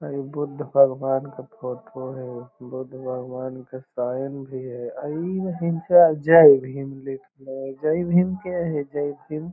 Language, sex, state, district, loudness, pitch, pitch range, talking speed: Magahi, male, Bihar, Lakhisarai, -22 LUFS, 135 Hz, 130-155 Hz, 175 wpm